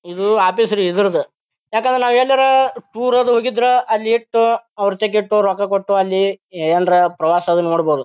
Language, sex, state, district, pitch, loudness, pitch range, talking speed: Kannada, male, Karnataka, Bijapur, 210 Hz, -16 LUFS, 185-235 Hz, 140 wpm